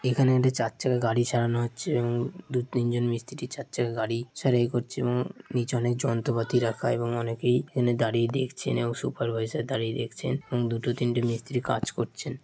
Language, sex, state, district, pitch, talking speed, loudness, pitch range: Bengali, male, West Bengal, Dakshin Dinajpur, 120 Hz, 180 wpm, -28 LUFS, 115-125 Hz